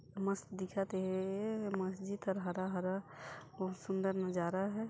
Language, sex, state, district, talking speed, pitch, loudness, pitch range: Hindi, female, Chhattisgarh, Jashpur, 120 wpm, 190 Hz, -39 LUFS, 185-195 Hz